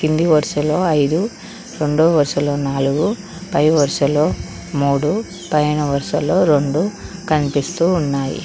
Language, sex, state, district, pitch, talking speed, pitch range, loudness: Telugu, female, Telangana, Mahabubabad, 150 Hz, 100 wpm, 145-175 Hz, -17 LUFS